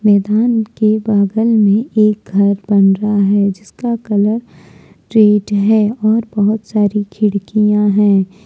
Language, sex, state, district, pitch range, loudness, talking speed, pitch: Hindi, female, Jharkhand, Deoghar, 205-220 Hz, -14 LUFS, 130 wpm, 210 Hz